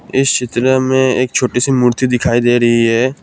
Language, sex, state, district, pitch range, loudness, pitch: Hindi, male, Assam, Kamrup Metropolitan, 120-130 Hz, -13 LUFS, 125 Hz